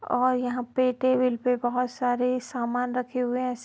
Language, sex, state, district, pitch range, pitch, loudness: Hindi, female, Bihar, Darbhanga, 245-255 Hz, 250 Hz, -26 LUFS